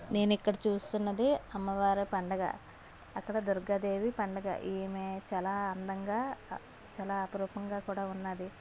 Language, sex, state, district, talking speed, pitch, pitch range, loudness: Telugu, female, Andhra Pradesh, Visakhapatnam, 105 wpm, 195 Hz, 190-205 Hz, -34 LUFS